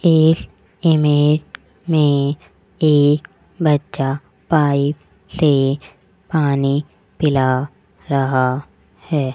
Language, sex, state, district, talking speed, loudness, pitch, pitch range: Hindi, male, Rajasthan, Jaipur, 70 wpm, -17 LUFS, 145 Hz, 140-155 Hz